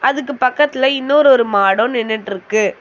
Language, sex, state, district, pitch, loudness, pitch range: Tamil, female, Tamil Nadu, Chennai, 250 Hz, -15 LUFS, 215-275 Hz